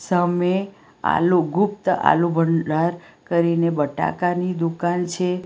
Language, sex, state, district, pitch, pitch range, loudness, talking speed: Gujarati, female, Gujarat, Valsad, 175 Hz, 170-180 Hz, -21 LUFS, 100 wpm